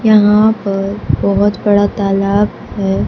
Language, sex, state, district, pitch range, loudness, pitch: Hindi, female, Bihar, Kaimur, 200-210 Hz, -13 LUFS, 205 Hz